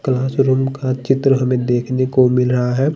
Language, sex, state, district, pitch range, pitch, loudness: Hindi, male, Bihar, Patna, 125-135 Hz, 130 Hz, -16 LUFS